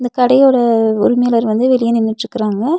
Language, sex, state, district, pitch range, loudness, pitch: Tamil, female, Tamil Nadu, Nilgiris, 225-250 Hz, -13 LUFS, 235 Hz